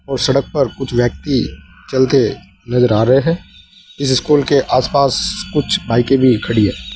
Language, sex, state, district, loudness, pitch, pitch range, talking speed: Hindi, male, Uttar Pradesh, Saharanpur, -15 LUFS, 130 Hz, 120-140 Hz, 180 wpm